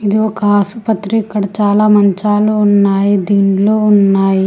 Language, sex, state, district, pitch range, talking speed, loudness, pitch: Telugu, female, Telangana, Hyderabad, 200-215 Hz, 120 wpm, -12 LUFS, 205 Hz